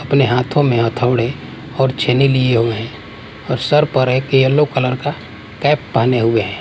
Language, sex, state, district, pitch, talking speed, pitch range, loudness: Hindi, male, Bihar, West Champaran, 125 Hz, 190 wpm, 115-135 Hz, -15 LUFS